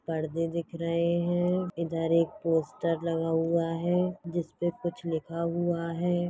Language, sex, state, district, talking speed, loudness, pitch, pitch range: Hindi, female, Maharashtra, Pune, 150 wpm, -29 LUFS, 170 Hz, 165-175 Hz